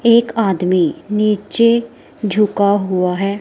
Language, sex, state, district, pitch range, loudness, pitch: Hindi, female, Himachal Pradesh, Shimla, 190-230 Hz, -16 LUFS, 205 Hz